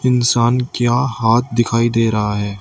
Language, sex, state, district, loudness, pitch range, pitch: Hindi, male, Uttar Pradesh, Shamli, -16 LUFS, 115-120 Hz, 120 Hz